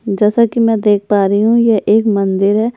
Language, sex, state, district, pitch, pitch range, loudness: Hindi, female, Uttar Pradesh, Jyotiba Phule Nagar, 210 Hz, 200-225 Hz, -12 LUFS